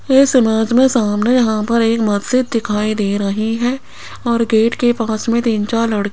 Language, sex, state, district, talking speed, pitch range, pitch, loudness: Hindi, female, Rajasthan, Jaipur, 205 wpm, 215-240 Hz, 230 Hz, -15 LUFS